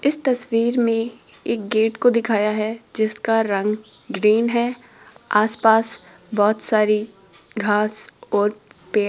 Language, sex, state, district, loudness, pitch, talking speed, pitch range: Hindi, female, Rajasthan, Jaipur, -20 LUFS, 220 Hz, 125 wpm, 210-230 Hz